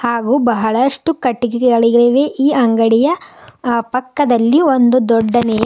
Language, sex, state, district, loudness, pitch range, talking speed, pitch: Kannada, female, Karnataka, Bidar, -14 LUFS, 235-275 Hz, 95 wpm, 245 Hz